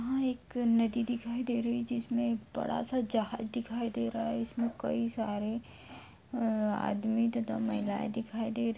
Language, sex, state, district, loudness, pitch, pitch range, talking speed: Hindi, female, Bihar, Lakhisarai, -33 LUFS, 230 Hz, 225-240 Hz, 185 wpm